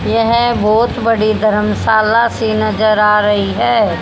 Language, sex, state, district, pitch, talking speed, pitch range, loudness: Hindi, female, Haryana, Jhajjar, 215 Hz, 135 wpm, 210-225 Hz, -13 LUFS